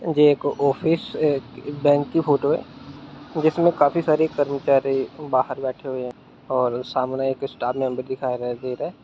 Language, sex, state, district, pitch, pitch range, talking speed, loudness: Hindi, male, Bihar, Muzaffarpur, 140 Hz, 130-145 Hz, 145 wpm, -22 LUFS